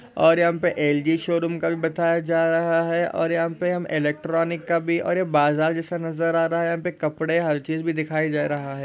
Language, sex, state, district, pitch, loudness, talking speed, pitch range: Hindi, male, Maharashtra, Solapur, 165 Hz, -22 LUFS, 245 wpm, 160-170 Hz